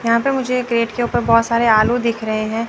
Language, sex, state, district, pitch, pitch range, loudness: Hindi, female, Chandigarh, Chandigarh, 230 Hz, 225-240 Hz, -17 LUFS